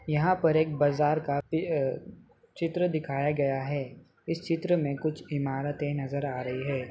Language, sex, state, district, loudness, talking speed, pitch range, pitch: Hindi, male, Bihar, Muzaffarpur, -29 LUFS, 155 wpm, 140-160 Hz, 145 Hz